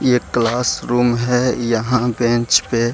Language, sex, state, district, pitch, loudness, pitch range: Hindi, male, Bihar, Gaya, 120 Hz, -17 LUFS, 120-125 Hz